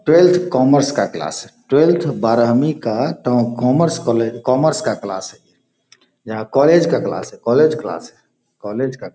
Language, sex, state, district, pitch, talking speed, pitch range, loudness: Hindi, male, Bihar, Gopalganj, 130 Hz, 170 wpm, 115-155 Hz, -16 LUFS